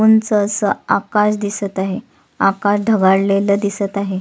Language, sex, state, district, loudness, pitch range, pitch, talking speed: Marathi, female, Maharashtra, Solapur, -16 LUFS, 195-210 Hz, 205 Hz, 130 wpm